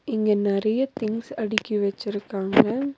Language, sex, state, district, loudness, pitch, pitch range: Tamil, female, Tamil Nadu, Nilgiris, -24 LUFS, 215 Hz, 205-230 Hz